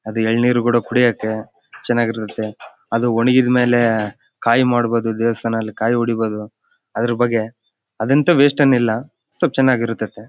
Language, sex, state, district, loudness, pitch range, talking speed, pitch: Kannada, male, Karnataka, Bellary, -17 LUFS, 110-125 Hz, 140 wpm, 115 Hz